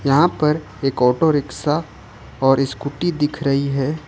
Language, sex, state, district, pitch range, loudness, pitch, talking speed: Hindi, male, Jharkhand, Ranchi, 135-150 Hz, -19 LUFS, 140 Hz, 145 wpm